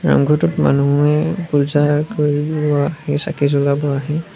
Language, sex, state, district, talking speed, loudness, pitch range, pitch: Assamese, male, Assam, Sonitpur, 135 wpm, -16 LUFS, 140-155 Hz, 145 Hz